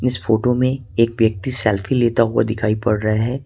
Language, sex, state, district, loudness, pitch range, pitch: Hindi, male, Jharkhand, Ranchi, -18 LUFS, 110-125 Hz, 115 Hz